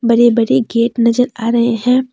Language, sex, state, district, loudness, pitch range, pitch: Hindi, female, Jharkhand, Deoghar, -13 LUFS, 230-245 Hz, 235 Hz